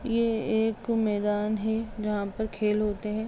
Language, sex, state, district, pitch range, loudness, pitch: Hindi, female, Bihar, Begusarai, 210-225 Hz, -28 LUFS, 215 Hz